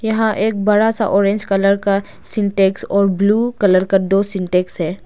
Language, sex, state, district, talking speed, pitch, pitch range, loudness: Hindi, female, Arunachal Pradesh, Lower Dibang Valley, 180 wpm, 200 Hz, 195-210 Hz, -16 LUFS